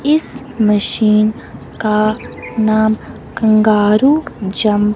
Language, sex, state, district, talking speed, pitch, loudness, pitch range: Hindi, female, Himachal Pradesh, Shimla, 70 wpm, 215 Hz, -14 LUFS, 210-235 Hz